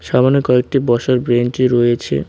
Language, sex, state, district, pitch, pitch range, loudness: Bengali, male, West Bengal, Cooch Behar, 125 Hz, 120-130 Hz, -15 LUFS